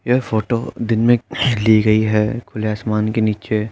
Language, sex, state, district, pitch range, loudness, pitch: Hindi, male, Uttar Pradesh, Etah, 110-120 Hz, -18 LUFS, 110 Hz